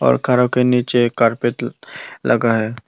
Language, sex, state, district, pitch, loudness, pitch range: Hindi, male, Tripura, Dhalai, 120 Hz, -17 LUFS, 115-125 Hz